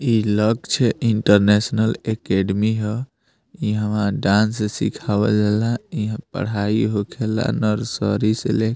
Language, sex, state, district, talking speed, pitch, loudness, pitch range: Bhojpuri, male, Bihar, Muzaffarpur, 110 wpm, 110 Hz, -20 LUFS, 105-110 Hz